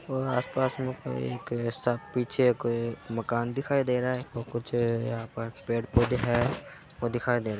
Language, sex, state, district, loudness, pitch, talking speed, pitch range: Hindi, male, Bihar, Samastipur, -29 LUFS, 120 Hz, 190 wpm, 115-125 Hz